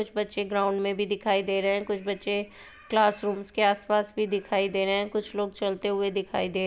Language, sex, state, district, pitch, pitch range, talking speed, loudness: Hindi, female, Bihar, Purnia, 205 Hz, 195-205 Hz, 245 wpm, -27 LUFS